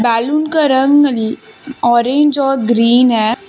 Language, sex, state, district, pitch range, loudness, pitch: Hindi, female, Jharkhand, Deoghar, 235-285 Hz, -12 LUFS, 255 Hz